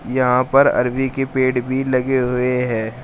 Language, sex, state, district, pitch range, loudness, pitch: Hindi, male, Uttar Pradesh, Shamli, 125-130 Hz, -18 LUFS, 130 Hz